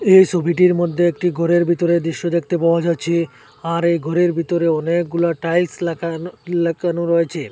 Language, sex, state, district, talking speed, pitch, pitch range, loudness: Bengali, male, Assam, Hailakandi, 150 wpm, 170 Hz, 165-175 Hz, -18 LUFS